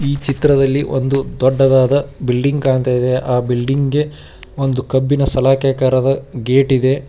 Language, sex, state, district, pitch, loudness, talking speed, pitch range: Kannada, male, Karnataka, Koppal, 135 Hz, -15 LUFS, 125 wpm, 130-140 Hz